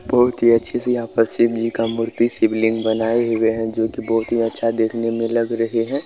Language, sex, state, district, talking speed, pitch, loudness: Hindi, male, Bihar, Bhagalpur, 230 wpm, 115 Hz, -18 LUFS